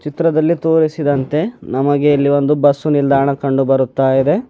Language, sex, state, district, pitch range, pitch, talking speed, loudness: Kannada, male, Karnataka, Bidar, 140-155 Hz, 145 Hz, 135 wpm, -15 LUFS